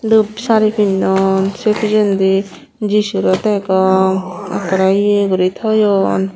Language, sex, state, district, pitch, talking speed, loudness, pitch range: Chakma, female, Tripura, Unakoti, 195 Hz, 115 wpm, -14 LUFS, 190-215 Hz